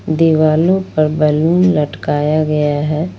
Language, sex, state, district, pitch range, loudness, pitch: Hindi, female, Jharkhand, Ranchi, 150-165 Hz, -14 LUFS, 155 Hz